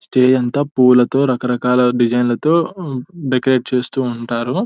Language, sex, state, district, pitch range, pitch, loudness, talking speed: Telugu, male, Telangana, Nalgonda, 125-135 Hz, 125 Hz, -16 LUFS, 105 wpm